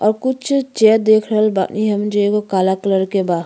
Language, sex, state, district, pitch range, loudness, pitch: Bhojpuri, female, Uttar Pradesh, Deoria, 195-220 Hz, -16 LUFS, 210 Hz